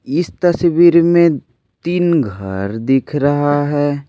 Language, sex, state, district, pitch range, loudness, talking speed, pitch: Hindi, male, Maharashtra, Aurangabad, 135-170 Hz, -14 LUFS, 115 wpm, 145 Hz